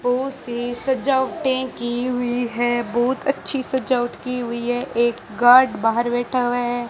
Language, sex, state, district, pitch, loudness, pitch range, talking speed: Hindi, male, Rajasthan, Bikaner, 245 Hz, -21 LUFS, 240-260 Hz, 155 wpm